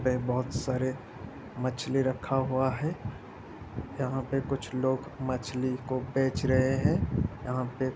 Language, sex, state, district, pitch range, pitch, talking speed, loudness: Hindi, female, Bihar, Saran, 125-135 Hz, 130 Hz, 150 wpm, -30 LUFS